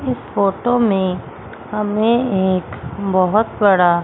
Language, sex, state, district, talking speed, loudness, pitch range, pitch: Hindi, female, Chandigarh, Chandigarh, 105 wpm, -17 LUFS, 185-210 Hz, 195 Hz